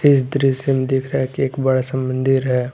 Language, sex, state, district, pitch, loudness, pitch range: Hindi, male, Jharkhand, Garhwa, 130 Hz, -19 LUFS, 130-135 Hz